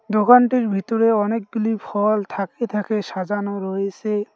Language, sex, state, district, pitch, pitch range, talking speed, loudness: Bengali, male, West Bengal, Cooch Behar, 210 Hz, 200-225 Hz, 110 wpm, -20 LUFS